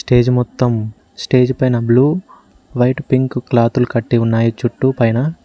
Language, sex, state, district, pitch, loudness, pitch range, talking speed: Telugu, male, Telangana, Mahabubabad, 125 Hz, -15 LUFS, 115-130 Hz, 130 wpm